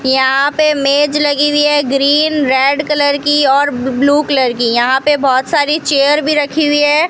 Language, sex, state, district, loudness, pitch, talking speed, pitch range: Hindi, female, Rajasthan, Bikaner, -12 LUFS, 285 Hz, 205 wpm, 270-295 Hz